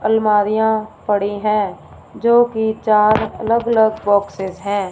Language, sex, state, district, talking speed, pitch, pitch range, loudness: Hindi, female, Punjab, Fazilka, 110 wpm, 215 Hz, 205-220 Hz, -17 LUFS